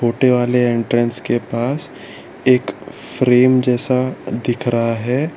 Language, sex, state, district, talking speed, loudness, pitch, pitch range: Hindi, male, Gujarat, Valsad, 110 wpm, -17 LUFS, 125 Hz, 120-130 Hz